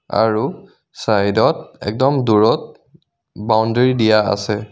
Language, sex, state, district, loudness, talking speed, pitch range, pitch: Assamese, male, Assam, Kamrup Metropolitan, -17 LUFS, 100 wpm, 105-115 Hz, 110 Hz